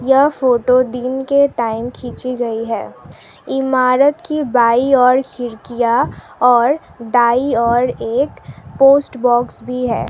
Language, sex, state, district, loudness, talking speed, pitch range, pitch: Hindi, female, Assam, Sonitpur, -15 LUFS, 125 wpm, 240-270 Hz, 250 Hz